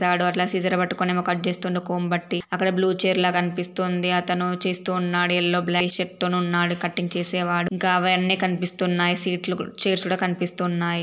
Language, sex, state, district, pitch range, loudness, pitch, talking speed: Telugu, female, Andhra Pradesh, Srikakulam, 175-185 Hz, -23 LUFS, 180 Hz, 175 wpm